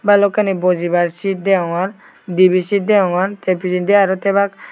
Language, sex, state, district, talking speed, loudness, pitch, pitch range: Chakma, male, Tripura, Dhalai, 140 wpm, -16 LUFS, 195 Hz, 180-200 Hz